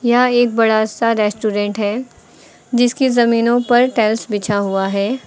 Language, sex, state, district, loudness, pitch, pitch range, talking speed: Hindi, female, Uttar Pradesh, Lucknow, -16 LUFS, 230 Hz, 210-245 Hz, 150 wpm